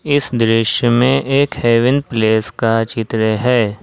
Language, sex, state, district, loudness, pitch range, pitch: Hindi, male, Jharkhand, Ranchi, -15 LUFS, 110-130 Hz, 115 Hz